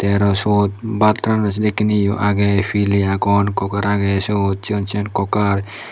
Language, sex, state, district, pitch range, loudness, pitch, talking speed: Chakma, male, Tripura, Unakoti, 100-105 Hz, -17 LUFS, 100 Hz, 170 wpm